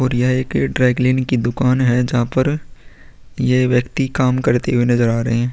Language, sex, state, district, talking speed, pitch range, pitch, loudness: Hindi, male, Chhattisgarh, Korba, 205 wpm, 120-130 Hz, 125 Hz, -17 LUFS